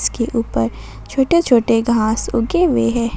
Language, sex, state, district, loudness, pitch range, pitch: Hindi, female, Jharkhand, Ranchi, -17 LUFS, 230-255 Hz, 235 Hz